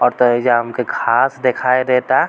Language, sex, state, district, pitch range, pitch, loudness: Bhojpuri, male, Bihar, East Champaran, 125-130 Hz, 125 Hz, -16 LUFS